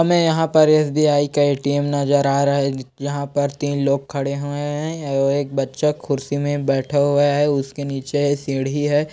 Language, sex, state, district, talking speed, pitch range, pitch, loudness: Hindi, male, Chhattisgarh, Korba, 190 wpm, 140-145 Hz, 145 Hz, -19 LUFS